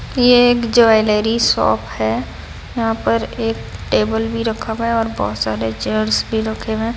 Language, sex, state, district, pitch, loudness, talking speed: Hindi, female, Odisha, Sambalpur, 220 Hz, -17 LUFS, 180 wpm